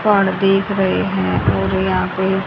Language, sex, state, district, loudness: Hindi, female, Haryana, Charkhi Dadri, -17 LUFS